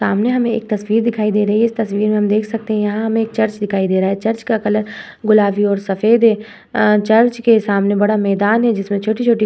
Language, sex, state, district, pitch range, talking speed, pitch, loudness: Hindi, female, Uttar Pradesh, Budaun, 205-225 Hz, 265 wpm, 215 Hz, -16 LUFS